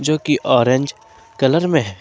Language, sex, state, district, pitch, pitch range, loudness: Hindi, male, Jharkhand, Ranchi, 150 Hz, 135-170 Hz, -17 LUFS